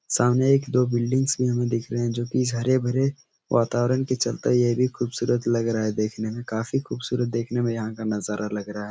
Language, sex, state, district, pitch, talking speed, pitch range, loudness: Hindi, male, Uttar Pradesh, Etah, 120 Hz, 220 wpm, 115-125 Hz, -24 LUFS